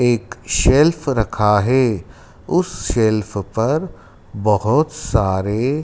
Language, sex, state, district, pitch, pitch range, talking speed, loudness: Hindi, male, Madhya Pradesh, Dhar, 115 Hz, 105-140 Hz, 95 wpm, -18 LUFS